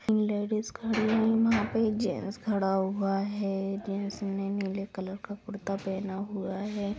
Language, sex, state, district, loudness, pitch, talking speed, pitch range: Hindi, female, Bihar, Sitamarhi, -30 LUFS, 200 Hz, 165 wpm, 195-215 Hz